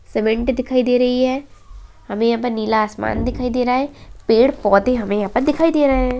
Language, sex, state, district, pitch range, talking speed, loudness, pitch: Kumaoni, male, Uttarakhand, Uttarkashi, 225-260 Hz, 215 wpm, -18 LUFS, 250 Hz